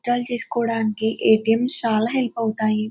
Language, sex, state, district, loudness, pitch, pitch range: Telugu, female, Andhra Pradesh, Anantapur, -19 LUFS, 225 Hz, 220-240 Hz